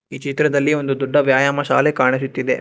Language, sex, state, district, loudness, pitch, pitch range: Kannada, male, Karnataka, Bangalore, -17 LUFS, 140 Hz, 130-145 Hz